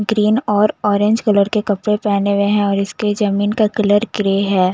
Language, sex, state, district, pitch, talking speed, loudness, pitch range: Hindi, female, Punjab, Kapurthala, 205 Hz, 200 wpm, -16 LUFS, 200-210 Hz